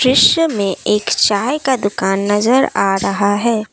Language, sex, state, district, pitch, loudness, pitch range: Hindi, female, Assam, Kamrup Metropolitan, 210 Hz, -14 LUFS, 200-255 Hz